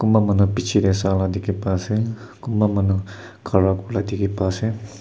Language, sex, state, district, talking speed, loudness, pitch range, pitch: Nagamese, male, Nagaland, Kohima, 190 wpm, -21 LUFS, 95-110 Hz, 100 Hz